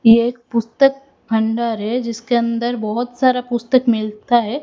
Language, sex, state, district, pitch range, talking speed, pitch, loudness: Hindi, female, Odisha, Khordha, 230-250 Hz, 155 wpm, 235 Hz, -18 LUFS